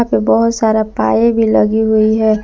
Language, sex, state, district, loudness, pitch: Hindi, female, Jharkhand, Palamu, -13 LUFS, 215 Hz